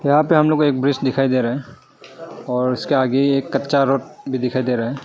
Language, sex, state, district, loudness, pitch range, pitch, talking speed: Hindi, male, Arunachal Pradesh, Lower Dibang Valley, -18 LUFS, 130-140 Hz, 135 Hz, 260 wpm